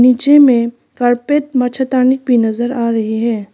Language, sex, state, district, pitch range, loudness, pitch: Hindi, female, Arunachal Pradesh, Papum Pare, 235-260 Hz, -13 LUFS, 245 Hz